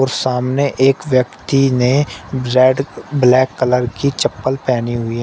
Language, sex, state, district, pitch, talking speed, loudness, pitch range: Hindi, male, Uttar Pradesh, Shamli, 130 Hz, 150 wpm, -15 LUFS, 125-135 Hz